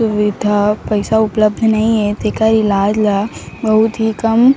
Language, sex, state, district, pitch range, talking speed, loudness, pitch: Chhattisgarhi, female, Chhattisgarh, Raigarh, 210-220 Hz, 145 wpm, -14 LUFS, 215 Hz